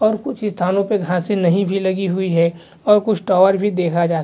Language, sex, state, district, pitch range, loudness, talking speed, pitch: Hindi, male, Bihar, Vaishali, 175-205 Hz, -17 LUFS, 240 wpm, 190 Hz